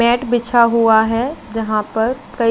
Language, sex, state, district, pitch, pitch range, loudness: Hindi, female, Chandigarh, Chandigarh, 230 Hz, 225-240 Hz, -16 LUFS